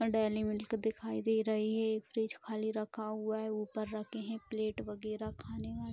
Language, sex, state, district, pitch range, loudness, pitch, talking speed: Hindi, female, Bihar, Vaishali, 215-220 Hz, -37 LUFS, 215 Hz, 200 wpm